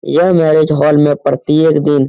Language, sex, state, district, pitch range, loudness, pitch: Hindi, male, Bihar, Lakhisarai, 150-155 Hz, -11 LUFS, 150 Hz